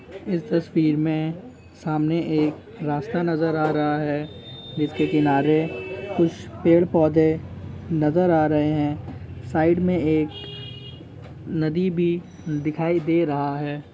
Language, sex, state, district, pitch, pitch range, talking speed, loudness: Hindi, male, Jharkhand, Jamtara, 155 Hz, 145-165 Hz, 120 wpm, -22 LUFS